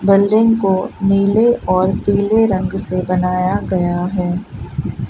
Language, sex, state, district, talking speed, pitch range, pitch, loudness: Hindi, female, Rajasthan, Bikaner, 115 wpm, 180-200 Hz, 185 Hz, -16 LUFS